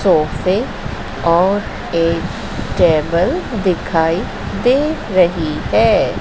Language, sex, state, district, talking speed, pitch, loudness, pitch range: Hindi, female, Madhya Pradesh, Dhar, 75 wpm, 170 Hz, -16 LUFS, 165-190 Hz